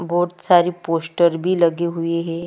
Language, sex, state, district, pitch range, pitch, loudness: Hindi, female, Chhattisgarh, Kabirdham, 165-175 Hz, 170 Hz, -19 LUFS